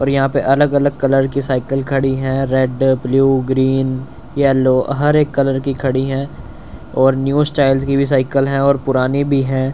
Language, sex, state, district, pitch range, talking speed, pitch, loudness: Hindi, male, Chandigarh, Chandigarh, 130-140 Hz, 190 wpm, 135 Hz, -15 LUFS